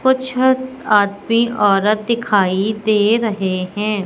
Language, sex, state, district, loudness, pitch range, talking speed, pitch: Hindi, female, Madhya Pradesh, Katni, -16 LUFS, 200-235 Hz, 120 wpm, 215 Hz